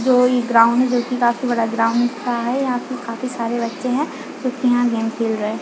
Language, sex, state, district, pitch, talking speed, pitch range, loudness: Hindi, female, Chhattisgarh, Bilaspur, 245 Hz, 255 wpm, 230-255 Hz, -19 LUFS